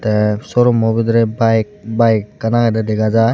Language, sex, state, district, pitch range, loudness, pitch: Chakma, male, Tripura, Unakoti, 110-115 Hz, -15 LUFS, 115 Hz